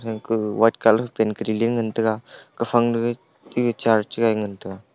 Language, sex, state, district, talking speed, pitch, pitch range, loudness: Wancho, male, Arunachal Pradesh, Longding, 170 wpm, 115 Hz, 110-115 Hz, -22 LUFS